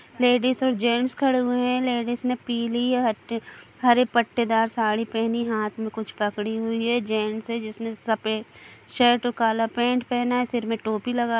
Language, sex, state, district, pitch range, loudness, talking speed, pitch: Hindi, female, Chhattisgarh, Kabirdham, 225-245 Hz, -24 LUFS, 180 wpm, 235 Hz